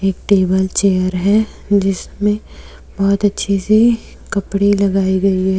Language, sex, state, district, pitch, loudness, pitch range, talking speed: Hindi, female, Jharkhand, Deoghar, 195 Hz, -15 LUFS, 190-205 Hz, 130 wpm